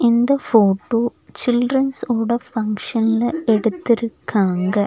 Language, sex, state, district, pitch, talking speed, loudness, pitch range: Tamil, female, Tamil Nadu, Nilgiris, 230 Hz, 75 wpm, -18 LUFS, 220-245 Hz